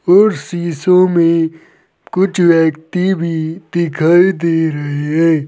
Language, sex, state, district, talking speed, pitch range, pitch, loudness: Hindi, male, Uttar Pradesh, Saharanpur, 110 wpm, 160-180 Hz, 165 Hz, -14 LUFS